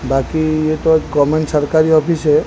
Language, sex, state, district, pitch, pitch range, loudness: Hindi, male, Odisha, Khordha, 155 Hz, 150-160 Hz, -15 LUFS